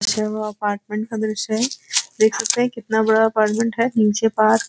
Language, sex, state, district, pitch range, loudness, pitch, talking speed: Hindi, female, Uttar Pradesh, Varanasi, 215-225 Hz, -19 LUFS, 220 Hz, 190 wpm